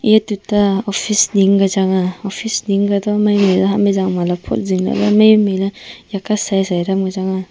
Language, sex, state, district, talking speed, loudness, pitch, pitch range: Wancho, female, Arunachal Pradesh, Longding, 225 wpm, -15 LUFS, 200 Hz, 190-210 Hz